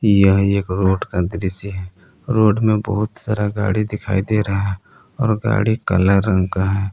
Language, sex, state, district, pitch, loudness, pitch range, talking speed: Hindi, male, Jharkhand, Palamu, 100 Hz, -18 LUFS, 95-105 Hz, 180 wpm